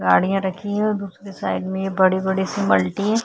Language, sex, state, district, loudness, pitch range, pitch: Hindi, female, Chhattisgarh, Kabirdham, -21 LUFS, 185-200 Hz, 190 Hz